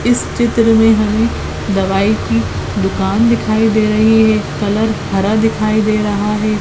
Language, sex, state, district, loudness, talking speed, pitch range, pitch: Hindi, female, Maharashtra, Chandrapur, -14 LUFS, 155 wpm, 195-220 Hz, 215 Hz